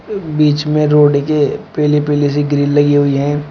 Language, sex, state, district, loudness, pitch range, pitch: Hindi, male, Uttar Pradesh, Shamli, -13 LUFS, 145-150 Hz, 145 Hz